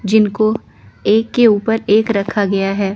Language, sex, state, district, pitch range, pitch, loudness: Hindi, female, Chandigarh, Chandigarh, 195-220 Hz, 210 Hz, -15 LUFS